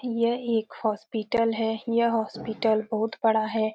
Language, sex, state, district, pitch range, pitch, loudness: Hindi, female, Uttar Pradesh, Etah, 220-230 Hz, 225 Hz, -26 LUFS